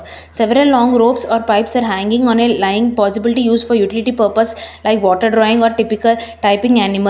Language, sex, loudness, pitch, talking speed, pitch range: English, female, -13 LUFS, 230 Hz, 195 wpm, 215-235 Hz